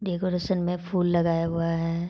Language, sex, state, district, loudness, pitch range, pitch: Hindi, female, Jharkhand, Sahebganj, -26 LUFS, 165-180 Hz, 175 Hz